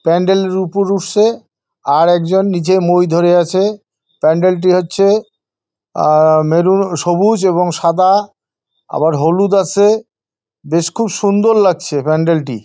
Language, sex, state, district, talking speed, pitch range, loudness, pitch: Bengali, male, West Bengal, Jalpaiguri, 135 wpm, 165-200 Hz, -13 LUFS, 185 Hz